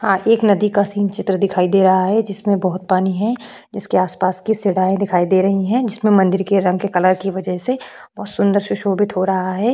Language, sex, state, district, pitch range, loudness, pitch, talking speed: Hindi, female, Goa, North and South Goa, 185-205 Hz, -17 LUFS, 195 Hz, 230 wpm